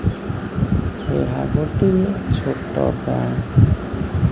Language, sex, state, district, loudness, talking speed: Odia, male, Odisha, Khordha, -20 LUFS, 70 wpm